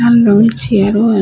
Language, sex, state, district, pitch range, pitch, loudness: Bengali, female, West Bengal, Paschim Medinipur, 205-230 Hz, 220 Hz, -11 LUFS